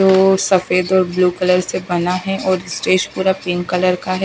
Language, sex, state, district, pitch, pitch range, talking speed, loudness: Hindi, female, Himachal Pradesh, Shimla, 185 Hz, 180-190 Hz, 195 wpm, -16 LUFS